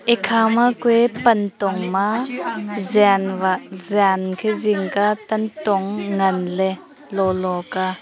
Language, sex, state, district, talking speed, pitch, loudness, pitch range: Wancho, female, Arunachal Pradesh, Longding, 125 wpm, 200 Hz, -19 LUFS, 190-220 Hz